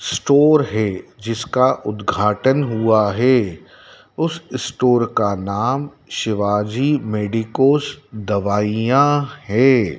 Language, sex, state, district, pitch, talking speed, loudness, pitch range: Hindi, male, Madhya Pradesh, Dhar, 120 Hz, 85 wpm, -18 LUFS, 105-140 Hz